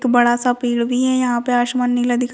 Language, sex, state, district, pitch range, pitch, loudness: Hindi, female, Rajasthan, Churu, 245-250 Hz, 245 Hz, -17 LUFS